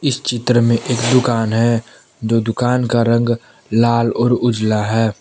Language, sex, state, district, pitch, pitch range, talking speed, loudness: Hindi, male, Jharkhand, Palamu, 115 Hz, 115-120 Hz, 150 wpm, -16 LUFS